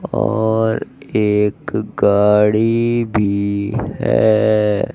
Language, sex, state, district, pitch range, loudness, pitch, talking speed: Hindi, male, Madhya Pradesh, Dhar, 105-110 Hz, -16 LUFS, 105 Hz, 60 wpm